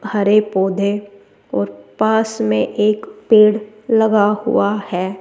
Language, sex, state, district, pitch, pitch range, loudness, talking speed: Hindi, female, Rajasthan, Jaipur, 210 Hz, 190-215 Hz, -16 LUFS, 115 wpm